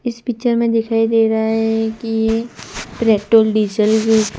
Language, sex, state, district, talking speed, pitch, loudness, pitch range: Hindi, female, Gujarat, Gandhinagar, 150 wpm, 225 Hz, -16 LUFS, 220-230 Hz